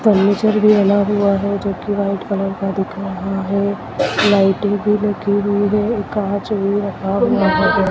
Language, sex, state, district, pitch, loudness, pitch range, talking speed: Hindi, female, Madhya Pradesh, Dhar, 200 Hz, -17 LUFS, 195-205 Hz, 165 wpm